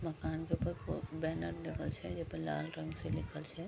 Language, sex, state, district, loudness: Maithili, female, Bihar, Vaishali, -40 LUFS